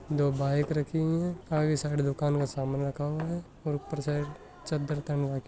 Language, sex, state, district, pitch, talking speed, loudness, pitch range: Hindi, male, Rajasthan, Nagaur, 145 Hz, 210 wpm, -30 LUFS, 140-155 Hz